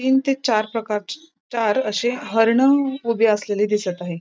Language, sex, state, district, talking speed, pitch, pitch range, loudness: Marathi, female, Maharashtra, Pune, 155 wpm, 230 Hz, 210-265 Hz, -20 LUFS